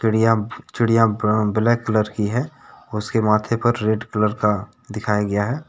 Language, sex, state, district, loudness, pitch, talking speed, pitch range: Hindi, male, Jharkhand, Deoghar, -20 LUFS, 110 Hz, 170 wpm, 105-115 Hz